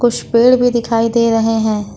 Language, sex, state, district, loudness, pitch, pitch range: Hindi, female, Jharkhand, Ranchi, -13 LUFS, 230 Hz, 225-240 Hz